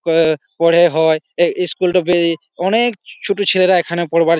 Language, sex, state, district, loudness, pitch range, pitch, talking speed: Bengali, male, West Bengal, Malda, -15 LUFS, 165-185 Hz, 170 Hz, 165 wpm